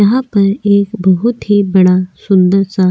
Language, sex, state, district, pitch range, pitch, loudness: Hindi, female, Goa, North and South Goa, 185-205 Hz, 195 Hz, -12 LUFS